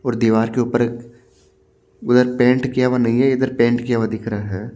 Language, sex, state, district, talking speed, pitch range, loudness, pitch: Hindi, male, Haryana, Jhajjar, 215 wpm, 110-125 Hz, -18 LUFS, 120 Hz